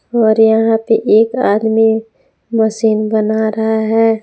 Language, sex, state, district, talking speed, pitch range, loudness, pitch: Hindi, female, Jharkhand, Palamu, 130 wpm, 220-225 Hz, -13 LUFS, 220 Hz